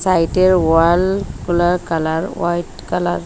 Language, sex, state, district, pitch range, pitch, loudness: Bengali, female, Assam, Hailakandi, 165-185 Hz, 175 Hz, -16 LUFS